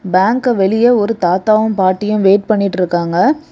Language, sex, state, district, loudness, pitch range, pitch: Tamil, female, Tamil Nadu, Kanyakumari, -13 LUFS, 185-220 Hz, 205 Hz